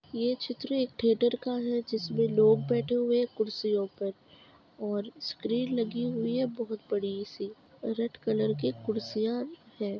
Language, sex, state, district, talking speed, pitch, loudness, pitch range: Hindi, female, Uttar Pradesh, Budaun, 155 wpm, 230 Hz, -30 LUFS, 215-240 Hz